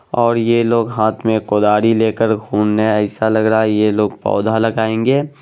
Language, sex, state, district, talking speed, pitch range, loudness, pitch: Hindi, male, Bihar, Araria, 190 wpm, 105-115 Hz, -15 LUFS, 110 Hz